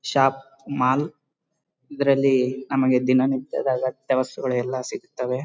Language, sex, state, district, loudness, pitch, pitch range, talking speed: Kannada, male, Karnataka, Bellary, -23 LUFS, 130 Hz, 130-140 Hz, 100 wpm